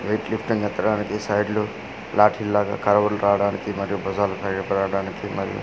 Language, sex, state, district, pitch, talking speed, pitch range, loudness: Telugu, male, Andhra Pradesh, Manyam, 105 Hz, 170 wpm, 100-105 Hz, -23 LUFS